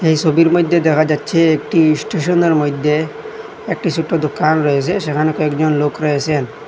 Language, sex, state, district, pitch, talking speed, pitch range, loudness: Bengali, male, Assam, Hailakandi, 155 Hz, 145 wpm, 150-170 Hz, -15 LUFS